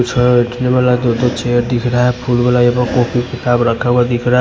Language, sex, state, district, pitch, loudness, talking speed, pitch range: Hindi, male, Punjab, Fazilka, 125 Hz, -14 LUFS, 215 wpm, 120-125 Hz